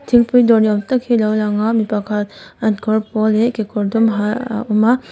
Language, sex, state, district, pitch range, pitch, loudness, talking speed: Mizo, female, Mizoram, Aizawl, 210-235 Hz, 220 Hz, -16 LUFS, 270 wpm